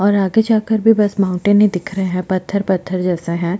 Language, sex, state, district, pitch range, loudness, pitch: Hindi, female, Chhattisgarh, Jashpur, 185-205 Hz, -16 LUFS, 195 Hz